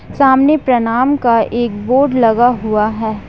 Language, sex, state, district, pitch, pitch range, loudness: Hindi, female, Jharkhand, Ranchi, 240 Hz, 225-265 Hz, -13 LUFS